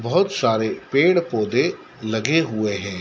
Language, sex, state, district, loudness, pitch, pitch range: Hindi, male, Madhya Pradesh, Dhar, -20 LUFS, 110 Hz, 110-160 Hz